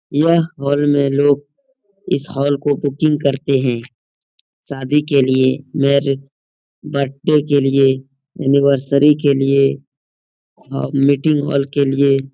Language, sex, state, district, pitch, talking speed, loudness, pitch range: Hindi, male, Bihar, Lakhisarai, 140 Hz, 110 wpm, -16 LUFS, 135-145 Hz